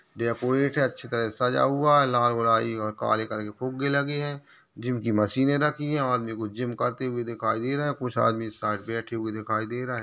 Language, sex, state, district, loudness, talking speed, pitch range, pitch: Hindi, male, Maharashtra, Solapur, -26 LUFS, 235 wpm, 115-135 Hz, 120 Hz